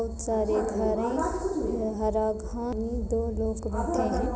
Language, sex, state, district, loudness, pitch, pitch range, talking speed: Hindi, female, Uttar Pradesh, Ghazipur, -29 LUFS, 220 Hz, 215-240 Hz, 150 wpm